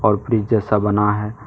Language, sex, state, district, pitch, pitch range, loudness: Hindi, male, Jharkhand, Deoghar, 105 Hz, 105-110 Hz, -18 LUFS